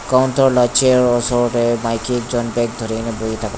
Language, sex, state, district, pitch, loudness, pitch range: Nagamese, male, Nagaland, Dimapur, 120 Hz, -17 LUFS, 115-125 Hz